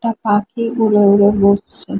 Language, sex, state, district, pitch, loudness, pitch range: Bengali, female, West Bengal, Kolkata, 205 Hz, -14 LUFS, 200-225 Hz